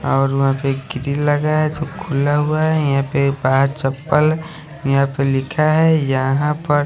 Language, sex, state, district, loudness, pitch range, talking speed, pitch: Hindi, male, Odisha, Khordha, -17 LUFS, 135-155 Hz, 190 wpm, 145 Hz